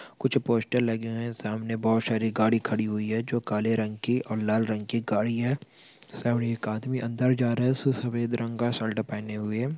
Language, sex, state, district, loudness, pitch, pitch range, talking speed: Hindi, male, Chhattisgarh, Bastar, -28 LUFS, 115 Hz, 110-120 Hz, 245 wpm